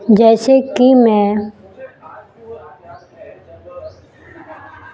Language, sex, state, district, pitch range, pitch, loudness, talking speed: Hindi, female, Chhattisgarh, Raipur, 205-255 Hz, 225 Hz, -11 LUFS, 35 wpm